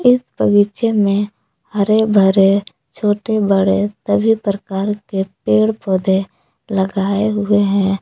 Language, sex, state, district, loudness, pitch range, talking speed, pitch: Hindi, female, Jharkhand, Palamu, -16 LUFS, 195-210 Hz, 110 wpm, 200 Hz